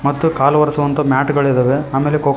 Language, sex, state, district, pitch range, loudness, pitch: Kannada, male, Karnataka, Koppal, 135-150 Hz, -15 LUFS, 140 Hz